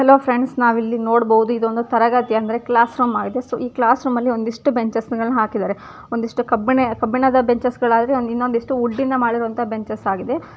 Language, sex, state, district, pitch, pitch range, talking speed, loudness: Kannada, female, Karnataka, Dharwad, 235 Hz, 230-250 Hz, 125 wpm, -18 LUFS